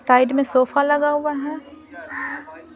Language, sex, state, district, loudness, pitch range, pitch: Hindi, female, Bihar, Patna, -20 LUFS, 280-305 Hz, 295 Hz